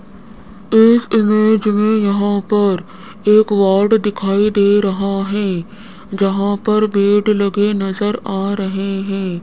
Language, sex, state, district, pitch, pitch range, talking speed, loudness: Hindi, male, Rajasthan, Jaipur, 205 Hz, 195-210 Hz, 120 wpm, -15 LUFS